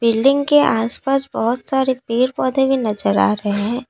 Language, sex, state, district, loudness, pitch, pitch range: Hindi, female, Assam, Kamrup Metropolitan, -17 LUFS, 245 Hz, 225-270 Hz